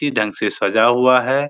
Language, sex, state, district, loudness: Hindi, male, Bihar, Supaul, -16 LUFS